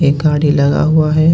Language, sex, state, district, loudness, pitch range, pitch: Hindi, male, Jharkhand, Ranchi, -12 LUFS, 145-155 Hz, 155 Hz